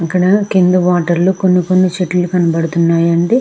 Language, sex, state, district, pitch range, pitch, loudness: Telugu, female, Andhra Pradesh, Krishna, 170-185 Hz, 180 Hz, -13 LUFS